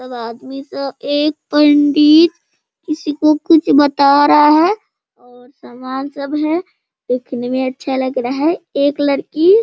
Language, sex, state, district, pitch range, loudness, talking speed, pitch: Hindi, female, Bihar, Sitamarhi, 265-305 Hz, -14 LUFS, 160 wpm, 290 Hz